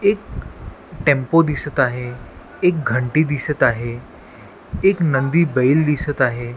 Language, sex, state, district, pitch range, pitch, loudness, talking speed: Marathi, male, Maharashtra, Washim, 125-160 Hz, 145 Hz, -18 LUFS, 120 wpm